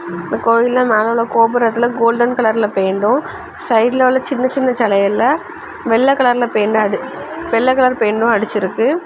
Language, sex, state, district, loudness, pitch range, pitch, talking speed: Tamil, female, Tamil Nadu, Kanyakumari, -15 LUFS, 220-255 Hz, 235 Hz, 115 wpm